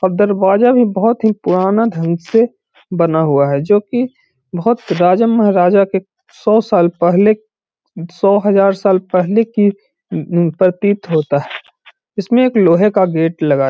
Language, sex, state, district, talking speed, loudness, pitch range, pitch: Hindi, male, Bihar, Gaya, 155 wpm, -13 LUFS, 175-215 Hz, 195 Hz